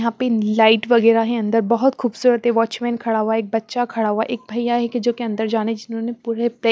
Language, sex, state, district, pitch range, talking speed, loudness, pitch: Hindi, female, Haryana, Charkhi Dadri, 225-240 Hz, 260 wpm, -19 LUFS, 230 Hz